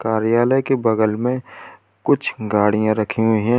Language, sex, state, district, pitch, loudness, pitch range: Hindi, male, Uttar Pradesh, Lalitpur, 110 Hz, -18 LUFS, 110-120 Hz